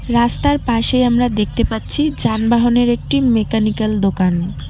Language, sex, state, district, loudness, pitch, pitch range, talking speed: Bengali, female, West Bengal, Cooch Behar, -16 LUFS, 235 Hz, 215-245 Hz, 115 wpm